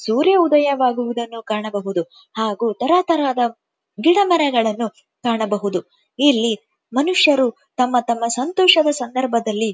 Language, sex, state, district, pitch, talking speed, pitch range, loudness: Kannada, female, Karnataka, Dharwad, 245 Hz, 75 wpm, 225-295 Hz, -18 LUFS